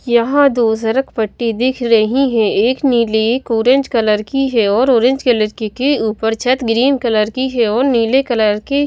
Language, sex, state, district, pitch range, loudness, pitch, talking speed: Hindi, female, Himachal Pradesh, Shimla, 225-260 Hz, -14 LUFS, 235 Hz, 195 wpm